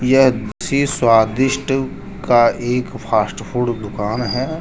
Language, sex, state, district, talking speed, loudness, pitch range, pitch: Hindi, male, Jharkhand, Deoghar, 115 wpm, -17 LUFS, 115-135 Hz, 125 Hz